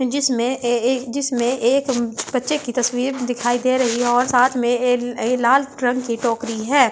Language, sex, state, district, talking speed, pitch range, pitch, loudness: Hindi, female, Delhi, New Delhi, 210 wpm, 240-260 Hz, 245 Hz, -19 LUFS